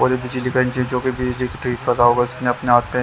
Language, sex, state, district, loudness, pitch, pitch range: Hindi, male, Haryana, Jhajjar, -19 LUFS, 125 Hz, 120-125 Hz